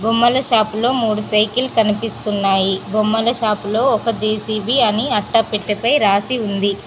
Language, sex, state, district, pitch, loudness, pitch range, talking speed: Telugu, female, Telangana, Mahabubabad, 215 Hz, -17 LUFS, 210-230 Hz, 120 wpm